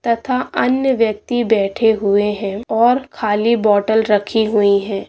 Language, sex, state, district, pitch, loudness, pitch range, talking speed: Hindi, female, Andhra Pradesh, Chittoor, 220 Hz, -16 LUFS, 205-235 Hz, 140 wpm